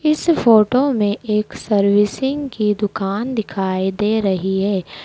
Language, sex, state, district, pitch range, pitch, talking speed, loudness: Hindi, female, Madhya Pradesh, Dhar, 195-245 Hz, 210 Hz, 130 wpm, -18 LUFS